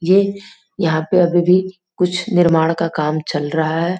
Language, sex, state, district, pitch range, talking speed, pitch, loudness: Hindi, female, Uttar Pradesh, Gorakhpur, 160-185 Hz, 180 wpm, 175 Hz, -17 LUFS